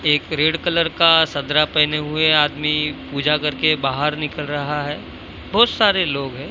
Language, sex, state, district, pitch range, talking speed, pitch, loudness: Hindi, male, Maharashtra, Mumbai Suburban, 150-155 Hz, 165 wpm, 150 Hz, -18 LUFS